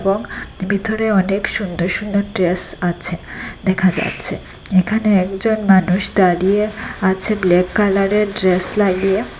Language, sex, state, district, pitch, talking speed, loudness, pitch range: Bengali, female, Assam, Hailakandi, 195 Hz, 115 wpm, -17 LUFS, 185-210 Hz